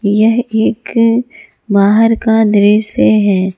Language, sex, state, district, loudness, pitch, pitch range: Hindi, female, Jharkhand, Garhwa, -11 LUFS, 220 Hz, 200-225 Hz